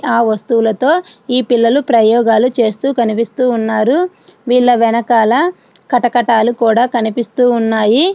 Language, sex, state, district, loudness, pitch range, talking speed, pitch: Telugu, female, Andhra Pradesh, Srikakulam, -13 LUFS, 225-250 Hz, 105 wpm, 235 Hz